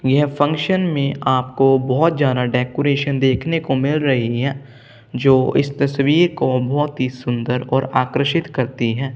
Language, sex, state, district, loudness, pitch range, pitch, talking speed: Hindi, male, Punjab, Kapurthala, -18 LUFS, 130-145 Hz, 135 Hz, 150 wpm